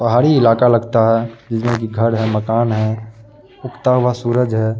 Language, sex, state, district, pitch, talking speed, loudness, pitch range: Hindi, male, Bihar, Araria, 115 Hz, 175 wpm, -16 LUFS, 110-120 Hz